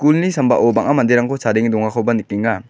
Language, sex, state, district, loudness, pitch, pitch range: Garo, male, Meghalaya, West Garo Hills, -16 LUFS, 115 Hz, 110-135 Hz